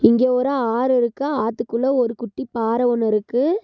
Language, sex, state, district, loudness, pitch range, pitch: Tamil, female, Tamil Nadu, Nilgiris, -20 LUFS, 230-260 Hz, 245 Hz